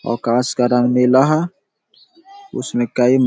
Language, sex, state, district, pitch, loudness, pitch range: Hindi, male, Bihar, Jahanabad, 125 Hz, -16 LUFS, 125-165 Hz